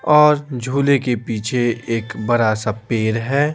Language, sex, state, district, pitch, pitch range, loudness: Hindi, male, Bihar, Patna, 120 Hz, 110-140 Hz, -18 LUFS